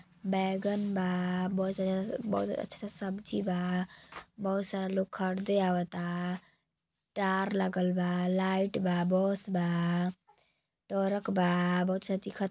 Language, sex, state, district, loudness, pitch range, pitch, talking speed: Bhojpuri, female, Uttar Pradesh, Gorakhpur, -32 LUFS, 180-195 Hz, 190 Hz, 120 wpm